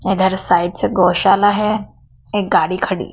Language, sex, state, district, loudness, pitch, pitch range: Hindi, female, Madhya Pradesh, Dhar, -16 LUFS, 190 Hz, 180-205 Hz